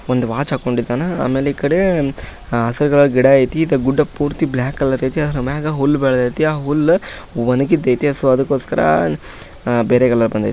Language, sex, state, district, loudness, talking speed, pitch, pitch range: Kannada, male, Karnataka, Dharwad, -16 LUFS, 155 wpm, 135 Hz, 125-150 Hz